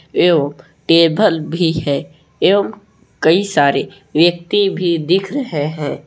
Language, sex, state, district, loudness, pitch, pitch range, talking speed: Hindi, male, Jharkhand, Palamu, -15 LUFS, 165 Hz, 150-190 Hz, 120 wpm